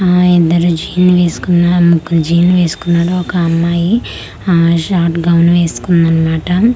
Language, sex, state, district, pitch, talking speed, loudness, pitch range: Telugu, female, Andhra Pradesh, Manyam, 170 Hz, 125 wpm, -12 LUFS, 170-180 Hz